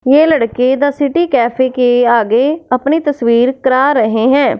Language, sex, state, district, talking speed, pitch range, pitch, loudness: Hindi, female, Punjab, Fazilka, 155 wpm, 245-285 Hz, 260 Hz, -12 LUFS